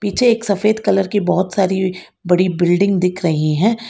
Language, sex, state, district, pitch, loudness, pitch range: Hindi, female, Karnataka, Bangalore, 190 Hz, -16 LUFS, 180-205 Hz